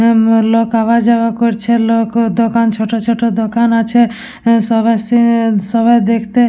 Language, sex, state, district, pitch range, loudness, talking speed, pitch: Bengali, female, West Bengal, Purulia, 225-235 Hz, -12 LUFS, 165 wpm, 230 Hz